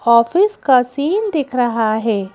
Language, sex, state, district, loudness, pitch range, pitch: Hindi, female, Madhya Pradesh, Bhopal, -16 LUFS, 230-305 Hz, 250 Hz